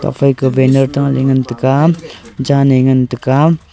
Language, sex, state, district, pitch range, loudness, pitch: Wancho, male, Arunachal Pradesh, Longding, 130-140 Hz, -12 LUFS, 135 Hz